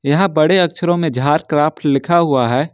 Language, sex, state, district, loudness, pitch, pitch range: Hindi, male, Jharkhand, Ranchi, -15 LUFS, 155 Hz, 145-170 Hz